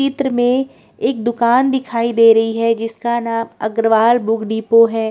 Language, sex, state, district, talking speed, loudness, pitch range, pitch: Hindi, female, Chhattisgarh, Korba, 165 wpm, -15 LUFS, 225-245 Hz, 230 Hz